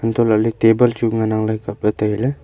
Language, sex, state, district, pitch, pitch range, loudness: Wancho, male, Arunachal Pradesh, Longding, 110 Hz, 110-115 Hz, -17 LUFS